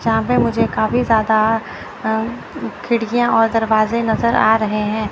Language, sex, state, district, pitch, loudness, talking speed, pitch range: Hindi, male, Chandigarh, Chandigarh, 225 Hz, -17 LUFS, 140 wpm, 220-235 Hz